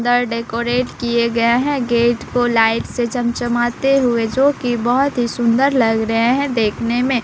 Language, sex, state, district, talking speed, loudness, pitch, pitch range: Hindi, female, Bihar, Katihar, 165 wpm, -17 LUFS, 240 Hz, 235-250 Hz